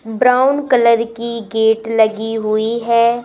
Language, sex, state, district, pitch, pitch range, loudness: Hindi, female, Madhya Pradesh, Umaria, 230 Hz, 220-235 Hz, -15 LUFS